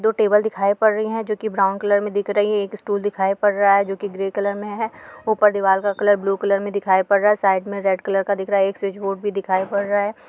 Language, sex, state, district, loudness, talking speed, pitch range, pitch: Hindi, female, Telangana, Nalgonda, -20 LUFS, 260 wpm, 195-210 Hz, 200 Hz